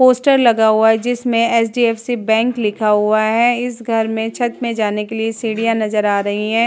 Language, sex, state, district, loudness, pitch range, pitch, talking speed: Hindi, female, Uttar Pradesh, Jalaun, -16 LUFS, 220-240 Hz, 225 Hz, 205 wpm